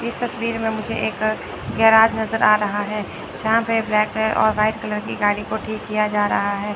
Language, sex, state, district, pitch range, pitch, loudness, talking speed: Hindi, female, Chandigarh, Chandigarh, 210-225 Hz, 215 Hz, -20 LUFS, 220 wpm